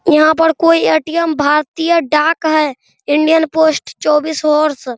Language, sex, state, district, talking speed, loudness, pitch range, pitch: Hindi, male, Bihar, Araria, 145 wpm, -13 LUFS, 300-325 Hz, 310 Hz